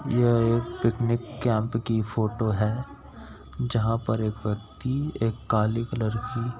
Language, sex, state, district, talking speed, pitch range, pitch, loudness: Hindi, male, Uttar Pradesh, Etah, 145 wpm, 110-120 Hz, 115 Hz, -26 LUFS